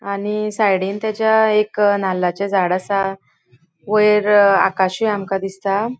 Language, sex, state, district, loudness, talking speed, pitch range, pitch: Konkani, female, Goa, North and South Goa, -17 LUFS, 110 wpm, 190-210 Hz, 200 Hz